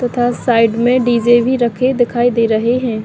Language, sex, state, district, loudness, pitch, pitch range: Hindi, female, Chhattisgarh, Bilaspur, -14 LUFS, 240 Hz, 235-245 Hz